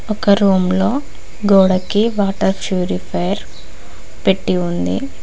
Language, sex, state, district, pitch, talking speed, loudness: Telugu, female, Telangana, Mahabubabad, 190 Hz, 90 wpm, -16 LUFS